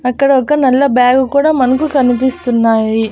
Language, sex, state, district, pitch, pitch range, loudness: Telugu, female, Andhra Pradesh, Annamaya, 260 Hz, 245-275 Hz, -12 LUFS